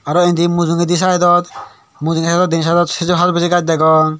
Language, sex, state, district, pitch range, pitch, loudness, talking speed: Chakma, male, Tripura, Dhalai, 165-175 Hz, 170 Hz, -14 LUFS, 145 wpm